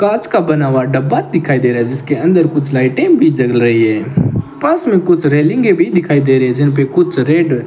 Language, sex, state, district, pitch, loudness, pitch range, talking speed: Hindi, male, Rajasthan, Bikaner, 145 Hz, -12 LUFS, 130-175 Hz, 235 wpm